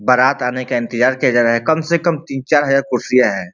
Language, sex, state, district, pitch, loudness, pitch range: Bhojpuri, male, Uttar Pradesh, Ghazipur, 130 Hz, -16 LUFS, 125-140 Hz